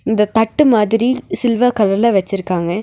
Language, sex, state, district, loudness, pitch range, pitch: Tamil, female, Tamil Nadu, Nilgiris, -15 LUFS, 195-240 Hz, 220 Hz